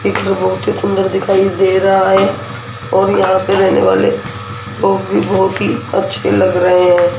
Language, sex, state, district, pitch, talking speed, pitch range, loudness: Hindi, female, Rajasthan, Jaipur, 190 Hz, 175 wpm, 175-195 Hz, -13 LUFS